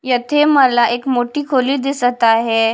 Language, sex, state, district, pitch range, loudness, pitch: Marathi, female, Maharashtra, Washim, 240-275 Hz, -15 LUFS, 250 Hz